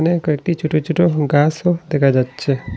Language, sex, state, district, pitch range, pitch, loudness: Bengali, male, Assam, Hailakandi, 145-165 Hz, 155 Hz, -17 LUFS